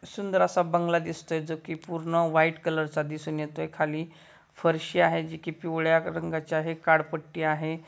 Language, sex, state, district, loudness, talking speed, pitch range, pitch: Marathi, male, Maharashtra, Solapur, -27 LUFS, 165 wpm, 155-165 Hz, 165 Hz